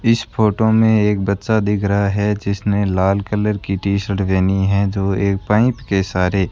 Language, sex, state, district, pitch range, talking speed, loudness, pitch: Hindi, male, Rajasthan, Bikaner, 95-105 Hz, 195 wpm, -17 LUFS, 100 Hz